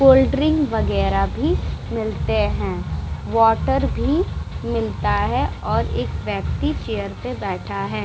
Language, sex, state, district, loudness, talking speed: Hindi, female, Bihar, Vaishali, -21 LUFS, 125 wpm